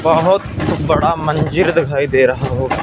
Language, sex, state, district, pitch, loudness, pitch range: Hindi, male, Punjab, Fazilka, 155 Hz, -15 LUFS, 130-165 Hz